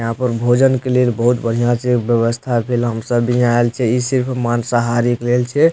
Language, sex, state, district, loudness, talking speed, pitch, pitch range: Maithili, male, Bihar, Supaul, -16 LUFS, 230 wpm, 120 Hz, 120-125 Hz